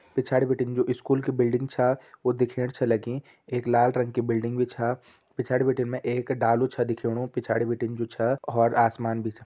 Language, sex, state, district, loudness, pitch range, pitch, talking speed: Hindi, male, Uttarakhand, Tehri Garhwal, -26 LUFS, 115-130 Hz, 125 Hz, 210 wpm